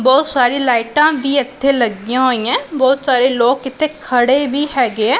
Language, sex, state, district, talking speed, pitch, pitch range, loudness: Punjabi, female, Punjab, Pathankot, 175 wpm, 260 Hz, 245-275 Hz, -14 LUFS